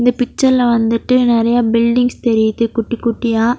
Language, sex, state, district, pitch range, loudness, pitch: Tamil, female, Tamil Nadu, Nilgiris, 230-245 Hz, -14 LUFS, 235 Hz